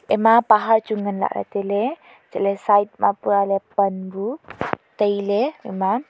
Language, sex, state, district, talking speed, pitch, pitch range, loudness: Wancho, female, Arunachal Pradesh, Longding, 145 wpm, 205 Hz, 200-225 Hz, -21 LUFS